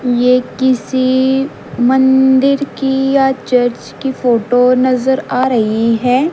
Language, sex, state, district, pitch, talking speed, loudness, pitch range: Hindi, female, Haryana, Charkhi Dadri, 260 Hz, 115 wpm, -13 LUFS, 250-265 Hz